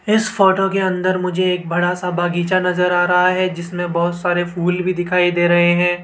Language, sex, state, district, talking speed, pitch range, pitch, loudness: Hindi, male, Rajasthan, Jaipur, 220 wpm, 175-185 Hz, 180 Hz, -17 LUFS